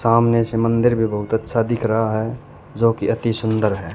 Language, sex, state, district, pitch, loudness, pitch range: Hindi, male, Haryana, Charkhi Dadri, 115 Hz, -19 LUFS, 110-115 Hz